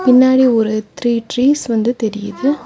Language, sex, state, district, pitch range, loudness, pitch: Tamil, female, Tamil Nadu, Nilgiris, 220-260 Hz, -15 LUFS, 240 Hz